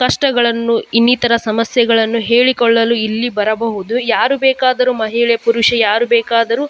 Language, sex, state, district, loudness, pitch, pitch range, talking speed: Kannada, female, Karnataka, Dakshina Kannada, -13 LUFS, 235 Hz, 230-240 Hz, 125 wpm